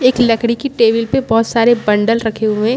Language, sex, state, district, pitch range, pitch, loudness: Hindi, female, Chhattisgarh, Balrampur, 225-240 Hz, 230 Hz, -14 LUFS